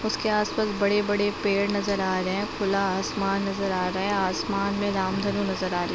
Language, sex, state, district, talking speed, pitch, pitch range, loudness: Hindi, female, Uttar Pradesh, Deoria, 210 wpm, 200 Hz, 190-205 Hz, -25 LUFS